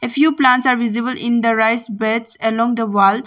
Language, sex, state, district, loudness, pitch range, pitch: English, female, Arunachal Pradesh, Longding, -16 LUFS, 225-250 Hz, 230 Hz